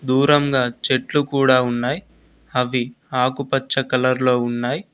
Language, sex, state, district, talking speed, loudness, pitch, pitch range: Telugu, male, Telangana, Mahabubabad, 110 wpm, -19 LUFS, 130 Hz, 125-135 Hz